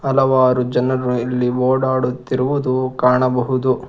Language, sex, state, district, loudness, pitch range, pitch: Kannada, male, Karnataka, Bangalore, -17 LUFS, 125-130 Hz, 130 Hz